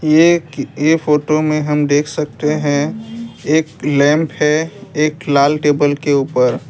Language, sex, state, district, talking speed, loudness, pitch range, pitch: Hindi, male, Assam, Kamrup Metropolitan, 135 wpm, -15 LUFS, 145-155 Hz, 150 Hz